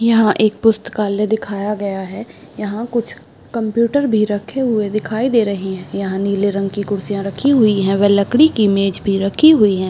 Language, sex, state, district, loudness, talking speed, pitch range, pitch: Hindi, female, Bihar, Madhepura, -16 LUFS, 195 wpm, 200-225 Hz, 210 Hz